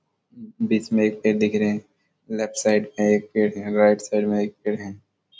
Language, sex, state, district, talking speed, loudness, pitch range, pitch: Hindi, male, Chhattisgarh, Raigarh, 210 wpm, -22 LUFS, 105-110 Hz, 105 Hz